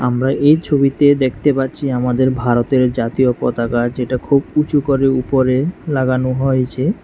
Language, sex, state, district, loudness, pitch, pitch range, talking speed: Bengali, male, Tripura, West Tripura, -16 LUFS, 130 Hz, 125-140 Hz, 135 wpm